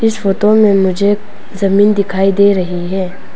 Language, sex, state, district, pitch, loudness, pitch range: Hindi, female, Arunachal Pradesh, Papum Pare, 200 Hz, -12 LUFS, 190-205 Hz